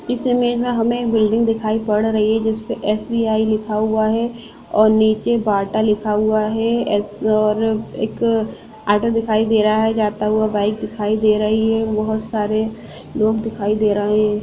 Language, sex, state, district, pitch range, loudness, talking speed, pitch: Hindi, female, Bihar, Sitamarhi, 215-225 Hz, -18 LUFS, 180 wpm, 220 Hz